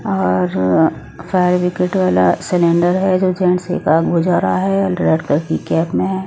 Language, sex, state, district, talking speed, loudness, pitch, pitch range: Hindi, female, Odisha, Nuapada, 190 wpm, -16 LUFS, 180 Hz, 160-185 Hz